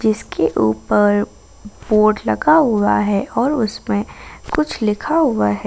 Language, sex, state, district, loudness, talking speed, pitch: Hindi, female, Jharkhand, Ranchi, -17 LUFS, 125 wpm, 210 Hz